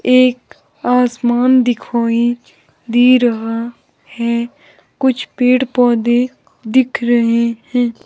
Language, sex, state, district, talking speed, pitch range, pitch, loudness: Hindi, female, Himachal Pradesh, Shimla, 90 wpm, 235-250 Hz, 240 Hz, -15 LUFS